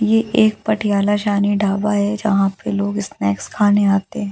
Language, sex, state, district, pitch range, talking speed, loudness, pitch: Hindi, female, Delhi, New Delhi, 200-210 Hz, 235 wpm, -18 LUFS, 205 Hz